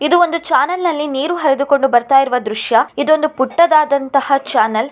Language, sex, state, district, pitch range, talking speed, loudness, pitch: Kannada, female, Karnataka, Shimoga, 260-310 Hz, 160 wpm, -14 LUFS, 280 Hz